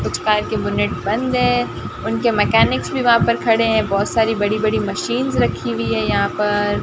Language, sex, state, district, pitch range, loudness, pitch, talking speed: Hindi, female, Rajasthan, Barmer, 195-225 Hz, -18 LUFS, 210 Hz, 200 wpm